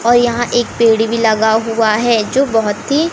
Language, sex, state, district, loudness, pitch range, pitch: Hindi, female, Madhya Pradesh, Umaria, -13 LUFS, 220-240 Hz, 230 Hz